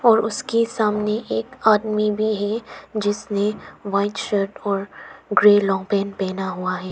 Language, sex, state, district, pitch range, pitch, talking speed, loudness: Hindi, female, Arunachal Pradesh, Papum Pare, 195-215 Hz, 205 Hz, 145 wpm, -21 LUFS